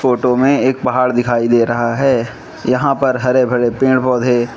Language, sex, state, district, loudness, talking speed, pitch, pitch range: Hindi, male, Manipur, Imphal West, -14 LUFS, 195 wpm, 125 Hz, 120-130 Hz